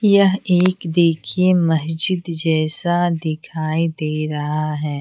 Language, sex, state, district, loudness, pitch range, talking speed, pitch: Hindi, female, Bihar, Patna, -18 LUFS, 155-180 Hz, 110 wpm, 165 Hz